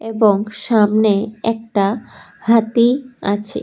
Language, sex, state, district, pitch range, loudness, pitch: Bengali, female, Tripura, West Tripura, 210-230 Hz, -17 LUFS, 220 Hz